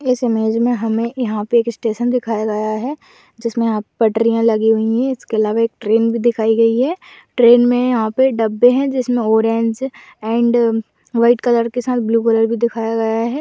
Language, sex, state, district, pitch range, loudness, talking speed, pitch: Hindi, female, Uttar Pradesh, Budaun, 225-245 Hz, -16 LUFS, 195 wpm, 230 Hz